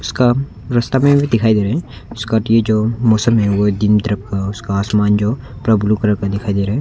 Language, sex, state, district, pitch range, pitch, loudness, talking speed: Hindi, male, Arunachal Pradesh, Longding, 105-115 Hz, 110 Hz, -16 LUFS, 245 wpm